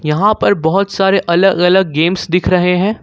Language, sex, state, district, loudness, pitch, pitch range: Hindi, male, Jharkhand, Ranchi, -13 LUFS, 180 Hz, 175-195 Hz